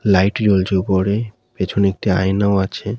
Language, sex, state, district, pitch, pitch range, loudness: Bengali, male, West Bengal, Dakshin Dinajpur, 100 Hz, 95-105 Hz, -17 LUFS